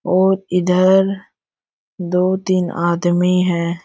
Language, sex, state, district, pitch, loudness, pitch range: Hindi, male, Jharkhand, Jamtara, 180 Hz, -16 LUFS, 175-190 Hz